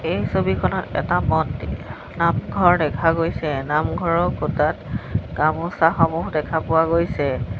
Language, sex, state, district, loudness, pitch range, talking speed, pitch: Assamese, female, Assam, Sonitpur, -21 LUFS, 150-165 Hz, 100 wpm, 160 Hz